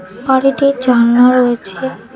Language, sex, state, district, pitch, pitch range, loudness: Bengali, female, West Bengal, Jhargram, 250 Hz, 240-265 Hz, -12 LUFS